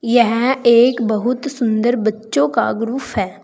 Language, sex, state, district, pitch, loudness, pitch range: Hindi, female, Uttar Pradesh, Saharanpur, 235 Hz, -16 LUFS, 220-245 Hz